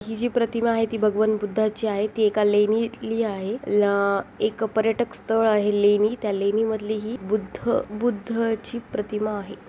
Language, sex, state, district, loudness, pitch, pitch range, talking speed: Marathi, female, Maharashtra, Aurangabad, -23 LUFS, 215 Hz, 210-225 Hz, 160 wpm